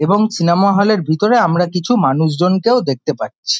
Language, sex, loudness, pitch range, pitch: Bengali, male, -14 LUFS, 160-210 Hz, 180 Hz